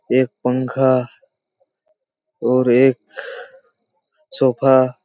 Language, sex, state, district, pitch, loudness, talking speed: Hindi, male, Chhattisgarh, Raigarh, 130 Hz, -17 LUFS, 60 wpm